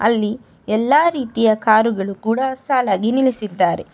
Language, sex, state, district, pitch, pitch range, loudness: Kannada, female, Karnataka, Bangalore, 225 Hz, 215-260 Hz, -17 LUFS